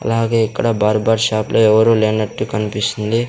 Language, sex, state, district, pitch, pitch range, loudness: Telugu, male, Andhra Pradesh, Sri Satya Sai, 110 Hz, 105-115 Hz, -16 LUFS